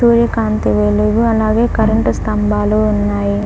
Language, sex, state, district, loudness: Telugu, female, Andhra Pradesh, Krishna, -14 LUFS